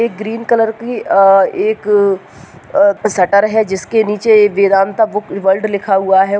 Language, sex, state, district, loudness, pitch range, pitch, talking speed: Hindi, male, Rajasthan, Nagaur, -13 LUFS, 195-220 Hz, 205 Hz, 160 wpm